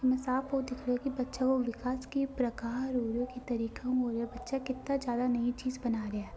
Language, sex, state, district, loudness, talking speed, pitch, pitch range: Hindi, female, Rajasthan, Nagaur, -34 LUFS, 275 wpm, 255 Hz, 240-260 Hz